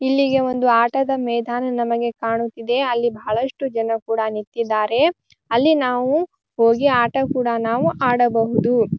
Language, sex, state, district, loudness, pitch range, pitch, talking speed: Kannada, female, Karnataka, Bijapur, -19 LUFS, 230-265 Hz, 240 Hz, 125 wpm